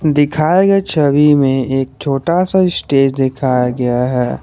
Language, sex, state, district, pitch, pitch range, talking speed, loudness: Hindi, male, Jharkhand, Garhwa, 140 Hz, 130-155 Hz, 150 wpm, -14 LUFS